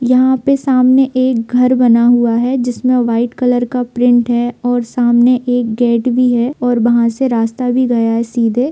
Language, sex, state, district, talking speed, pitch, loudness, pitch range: Hindi, female, Jharkhand, Sahebganj, 200 wpm, 245 Hz, -13 LUFS, 235-255 Hz